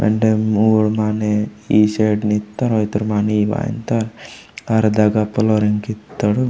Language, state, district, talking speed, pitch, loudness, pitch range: Gondi, Chhattisgarh, Sukma, 110 wpm, 110 Hz, -17 LUFS, 105-110 Hz